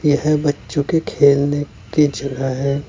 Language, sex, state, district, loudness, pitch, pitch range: Hindi, male, Uttar Pradesh, Saharanpur, -18 LUFS, 145 Hz, 140-145 Hz